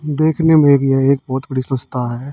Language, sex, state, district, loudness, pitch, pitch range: Hindi, female, Haryana, Charkhi Dadri, -15 LUFS, 135 Hz, 130-150 Hz